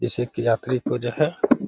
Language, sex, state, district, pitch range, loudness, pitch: Hindi, male, Bihar, Gaya, 120-130 Hz, -23 LUFS, 120 Hz